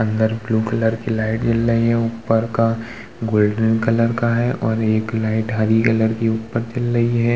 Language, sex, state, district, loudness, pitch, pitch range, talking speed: Hindi, male, Uttar Pradesh, Muzaffarnagar, -19 LUFS, 115 Hz, 110-115 Hz, 195 wpm